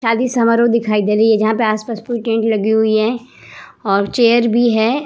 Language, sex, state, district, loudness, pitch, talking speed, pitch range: Hindi, female, Bihar, Vaishali, -15 LUFS, 225 Hz, 225 wpm, 215-235 Hz